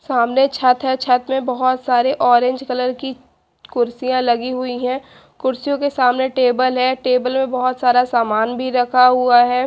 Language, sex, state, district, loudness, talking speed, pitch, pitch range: Hindi, female, Haryana, Charkhi Dadri, -17 LUFS, 160 wpm, 255 Hz, 250-260 Hz